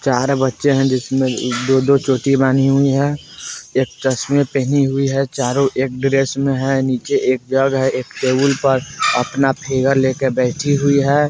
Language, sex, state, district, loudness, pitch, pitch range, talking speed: Bajjika, male, Bihar, Vaishali, -16 LUFS, 135 Hz, 130-140 Hz, 170 wpm